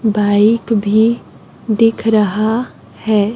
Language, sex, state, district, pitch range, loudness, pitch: Hindi, male, Chhattisgarh, Raipur, 210-225 Hz, -14 LUFS, 220 Hz